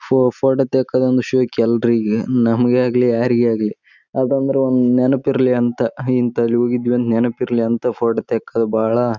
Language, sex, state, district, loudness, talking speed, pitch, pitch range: Kannada, male, Karnataka, Raichur, -17 LUFS, 35 wpm, 120 Hz, 115-130 Hz